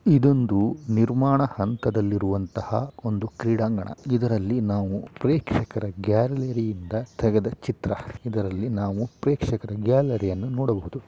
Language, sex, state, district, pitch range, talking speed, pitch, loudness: Kannada, male, Karnataka, Shimoga, 105-125 Hz, 95 wpm, 115 Hz, -25 LUFS